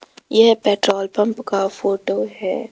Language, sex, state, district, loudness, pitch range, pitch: Hindi, female, Rajasthan, Jaipur, -18 LUFS, 195-220 Hz, 200 Hz